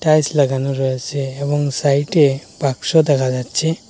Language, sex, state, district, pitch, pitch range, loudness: Bengali, male, Assam, Hailakandi, 140 Hz, 135-150 Hz, -17 LUFS